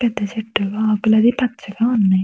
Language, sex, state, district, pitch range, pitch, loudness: Telugu, female, Andhra Pradesh, Krishna, 205-235 Hz, 220 Hz, -18 LUFS